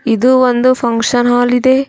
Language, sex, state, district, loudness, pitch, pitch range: Kannada, female, Karnataka, Bidar, -11 LUFS, 245 Hz, 245-255 Hz